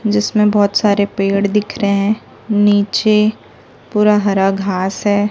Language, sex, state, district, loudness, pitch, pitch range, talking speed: Hindi, female, Chhattisgarh, Raipur, -15 LUFS, 205 Hz, 200-210 Hz, 135 wpm